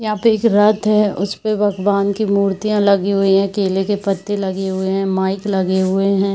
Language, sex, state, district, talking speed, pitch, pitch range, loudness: Hindi, female, Bihar, Saharsa, 215 wpm, 200 Hz, 195-205 Hz, -16 LUFS